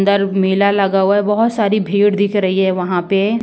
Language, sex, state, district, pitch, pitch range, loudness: Hindi, female, Uttar Pradesh, Ghazipur, 200 Hz, 195-205 Hz, -15 LUFS